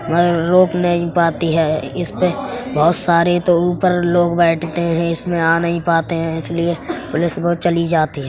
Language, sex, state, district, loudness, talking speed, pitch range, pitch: Hindi, female, Uttar Pradesh, Etah, -16 LUFS, 175 wpm, 165-175 Hz, 170 Hz